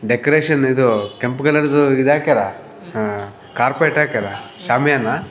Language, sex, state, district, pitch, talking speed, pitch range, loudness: Kannada, male, Karnataka, Raichur, 135 Hz, 100 wpm, 110-150 Hz, -16 LUFS